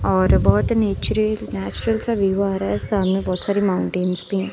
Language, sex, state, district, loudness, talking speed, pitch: Hindi, female, Punjab, Kapurthala, -20 LUFS, 200 wpm, 180 Hz